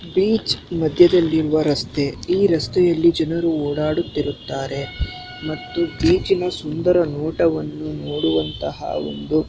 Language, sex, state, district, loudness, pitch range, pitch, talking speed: Kannada, male, Karnataka, Shimoga, -20 LUFS, 135-170 Hz, 155 Hz, 80 wpm